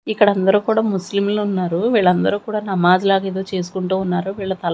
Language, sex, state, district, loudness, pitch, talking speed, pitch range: Telugu, female, Andhra Pradesh, Manyam, -18 LUFS, 195 Hz, 150 wpm, 185-205 Hz